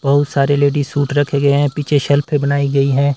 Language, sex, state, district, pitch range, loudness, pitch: Hindi, male, Himachal Pradesh, Shimla, 140-145 Hz, -15 LUFS, 140 Hz